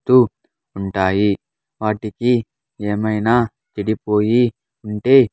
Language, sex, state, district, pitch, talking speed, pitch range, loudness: Telugu, male, Andhra Pradesh, Sri Satya Sai, 110 Hz, 65 wpm, 105-125 Hz, -19 LUFS